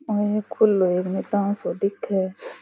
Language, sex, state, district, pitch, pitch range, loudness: Rajasthani, female, Rajasthan, Churu, 200 Hz, 190-210 Hz, -23 LUFS